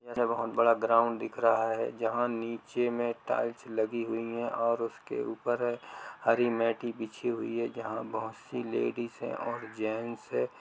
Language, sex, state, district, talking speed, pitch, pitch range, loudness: Hindi, male, Uttar Pradesh, Jalaun, 170 wpm, 115 Hz, 115-120 Hz, -32 LUFS